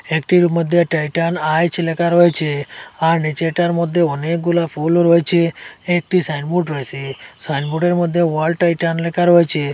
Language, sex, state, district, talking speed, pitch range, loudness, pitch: Bengali, male, Assam, Hailakandi, 135 wpm, 155-175 Hz, -16 LUFS, 170 Hz